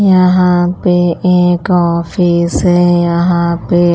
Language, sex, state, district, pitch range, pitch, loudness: Hindi, female, Punjab, Pathankot, 175-180 Hz, 175 Hz, -11 LUFS